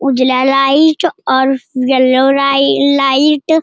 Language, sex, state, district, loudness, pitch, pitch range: Hindi, female, Bihar, Jamui, -11 LUFS, 275 Hz, 260-290 Hz